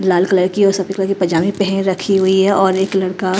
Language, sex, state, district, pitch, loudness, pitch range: Hindi, female, Chhattisgarh, Raipur, 190 Hz, -15 LUFS, 185-195 Hz